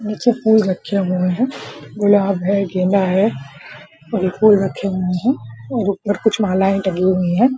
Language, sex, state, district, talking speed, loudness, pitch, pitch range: Hindi, female, Bihar, Purnia, 175 wpm, -17 LUFS, 195 Hz, 185-210 Hz